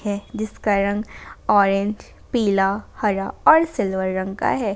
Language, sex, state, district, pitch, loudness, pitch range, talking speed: Hindi, female, Jharkhand, Garhwa, 205 Hz, -21 LUFS, 195-215 Hz, 140 wpm